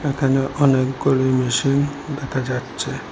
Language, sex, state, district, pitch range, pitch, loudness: Bengali, male, Assam, Hailakandi, 130-140 Hz, 135 Hz, -20 LUFS